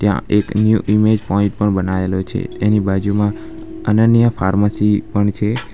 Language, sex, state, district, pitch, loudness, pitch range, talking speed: Gujarati, male, Gujarat, Valsad, 105 Hz, -16 LUFS, 100-110 Hz, 145 wpm